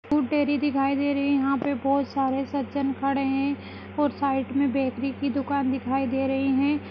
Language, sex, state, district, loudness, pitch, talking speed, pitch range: Kumaoni, female, Uttarakhand, Uttarkashi, -25 LUFS, 275 Hz, 200 wpm, 270-280 Hz